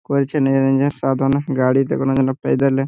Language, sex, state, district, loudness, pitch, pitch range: Bengali, male, West Bengal, Purulia, -18 LUFS, 135 Hz, 135-140 Hz